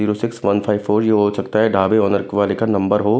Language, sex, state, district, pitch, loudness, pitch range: Hindi, male, Punjab, Kapurthala, 105 Hz, -17 LUFS, 100-110 Hz